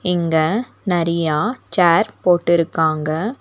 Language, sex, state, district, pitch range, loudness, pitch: Tamil, female, Tamil Nadu, Nilgiris, 160-185 Hz, -18 LUFS, 170 Hz